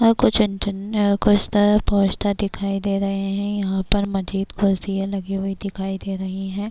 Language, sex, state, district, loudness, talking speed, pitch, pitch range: Urdu, female, Bihar, Kishanganj, -21 LUFS, 170 wpm, 200 Hz, 195-205 Hz